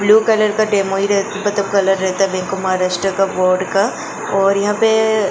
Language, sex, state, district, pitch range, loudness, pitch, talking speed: Hindi, female, Goa, North and South Goa, 195-210 Hz, -16 LUFS, 195 Hz, 205 wpm